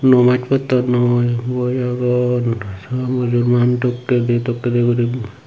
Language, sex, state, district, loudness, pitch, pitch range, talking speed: Chakma, male, Tripura, Unakoti, -17 LUFS, 125 Hz, 120-125 Hz, 130 wpm